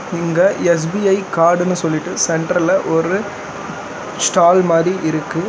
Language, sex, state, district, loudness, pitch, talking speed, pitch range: Tamil, male, Tamil Nadu, Chennai, -15 LUFS, 175 Hz, 100 wpm, 165-180 Hz